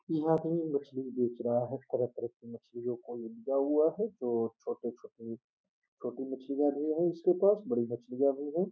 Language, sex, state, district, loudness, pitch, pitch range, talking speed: Hindi, male, Uttar Pradesh, Gorakhpur, -33 LUFS, 135 Hz, 120-160 Hz, 180 wpm